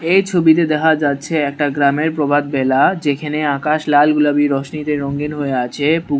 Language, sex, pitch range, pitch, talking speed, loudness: Bengali, male, 145-155 Hz, 145 Hz, 175 wpm, -16 LUFS